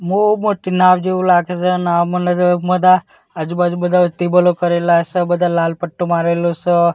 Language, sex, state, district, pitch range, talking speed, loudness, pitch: Gujarati, male, Gujarat, Gandhinagar, 175-180 Hz, 155 wpm, -15 LUFS, 175 Hz